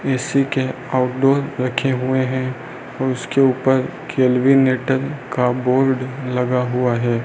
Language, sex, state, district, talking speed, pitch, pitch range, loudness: Hindi, male, Rajasthan, Bikaner, 115 wpm, 130 Hz, 125-135 Hz, -19 LUFS